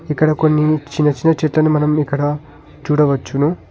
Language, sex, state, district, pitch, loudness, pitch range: Telugu, male, Telangana, Hyderabad, 150 Hz, -16 LUFS, 145-155 Hz